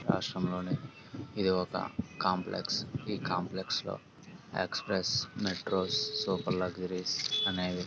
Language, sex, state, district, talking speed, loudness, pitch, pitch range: Telugu, male, Telangana, Karimnagar, 100 wpm, -33 LUFS, 90 Hz, 90-110 Hz